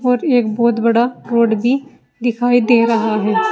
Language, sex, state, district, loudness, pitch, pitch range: Hindi, female, Uttar Pradesh, Saharanpur, -15 LUFS, 235 Hz, 230-245 Hz